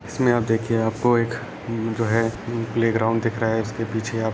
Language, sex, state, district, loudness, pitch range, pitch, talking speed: Hindi, male, Bihar, Lakhisarai, -23 LUFS, 110-115 Hz, 115 Hz, 260 wpm